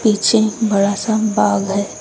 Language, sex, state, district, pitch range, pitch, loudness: Hindi, female, Uttar Pradesh, Lucknow, 200-220 Hz, 210 Hz, -16 LUFS